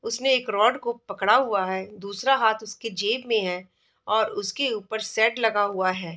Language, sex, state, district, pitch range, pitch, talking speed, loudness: Hindi, female, Bihar, East Champaran, 200-230 Hz, 215 Hz, 205 wpm, -24 LUFS